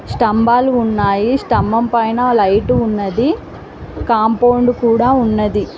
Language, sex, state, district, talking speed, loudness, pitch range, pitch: Telugu, female, Andhra Pradesh, Guntur, 75 wpm, -14 LUFS, 215-245 Hz, 230 Hz